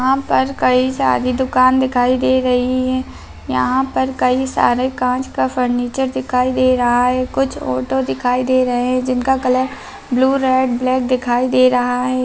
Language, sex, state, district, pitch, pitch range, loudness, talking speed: Hindi, female, Bihar, Araria, 255 Hz, 245-260 Hz, -16 LUFS, 175 wpm